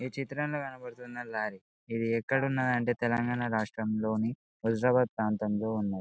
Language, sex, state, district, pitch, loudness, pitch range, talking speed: Telugu, male, Telangana, Karimnagar, 120 Hz, -31 LUFS, 110-125 Hz, 130 wpm